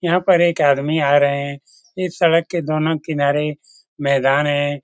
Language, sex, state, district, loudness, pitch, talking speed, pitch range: Hindi, male, Bihar, Lakhisarai, -18 LUFS, 150 Hz, 175 wpm, 140-170 Hz